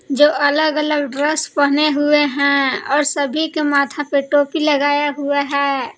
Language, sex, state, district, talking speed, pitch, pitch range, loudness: Hindi, female, Jharkhand, Palamu, 160 wpm, 290 Hz, 280-295 Hz, -16 LUFS